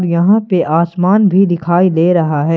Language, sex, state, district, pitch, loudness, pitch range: Hindi, male, Jharkhand, Ranchi, 175 Hz, -12 LUFS, 170-190 Hz